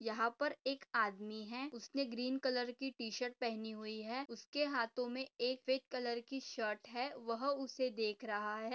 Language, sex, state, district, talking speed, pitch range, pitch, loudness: Hindi, female, Maharashtra, Pune, 160 wpm, 225-265 Hz, 245 Hz, -41 LUFS